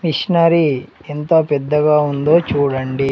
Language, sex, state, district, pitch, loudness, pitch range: Telugu, male, Andhra Pradesh, Sri Satya Sai, 150 Hz, -15 LUFS, 140-160 Hz